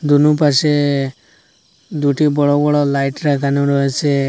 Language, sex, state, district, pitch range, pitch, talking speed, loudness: Bengali, male, Assam, Hailakandi, 140-150 Hz, 145 Hz, 110 wpm, -15 LUFS